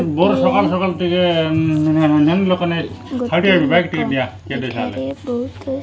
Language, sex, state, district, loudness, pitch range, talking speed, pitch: Odia, female, Odisha, Malkangiri, -17 LUFS, 155-190 Hz, 60 wpm, 175 Hz